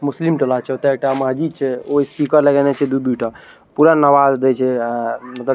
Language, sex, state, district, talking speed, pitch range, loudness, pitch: Maithili, male, Bihar, Araria, 195 wpm, 130-145 Hz, -16 LUFS, 135 Hz